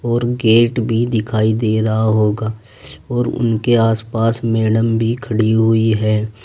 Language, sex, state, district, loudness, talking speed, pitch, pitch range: Hindi, male, Uttar Pradesh, Saharanpur, -16 LUFS, 140 wpm, 110 Hz, 110-115 Hz